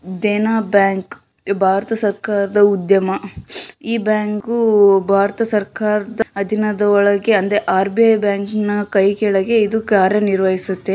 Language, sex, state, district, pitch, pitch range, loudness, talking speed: Kannada, female, Karnataka, Shimoga, 205 Hz, 195-215 Hz, -16 LUFS, 95 wpm